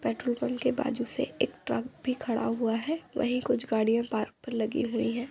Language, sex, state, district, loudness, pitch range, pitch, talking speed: Hindi, female, Uttar Pradesh, Budaun, -30 LUFS, 230-255 Hz, 245 Hz, 215 wpm